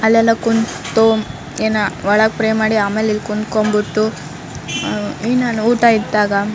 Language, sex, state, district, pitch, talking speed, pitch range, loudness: Kannada, female, Karnataka, Raichur, 220 Hz, 135 wpm, 210-225 Hz, -16 LUFS